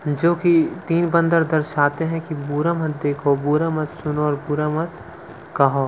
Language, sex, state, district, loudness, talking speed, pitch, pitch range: Hindi, male, Chhattisgarh, Sukma, -20 LUFS, 175 wpm, 155 Hz, 145-165 Hz